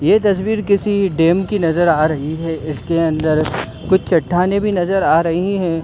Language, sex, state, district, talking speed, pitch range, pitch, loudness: Hindi, male, Jharkhand, Sahebganj, 185 wpm, 160-195 Hz, 175 Hz, -16 LUFS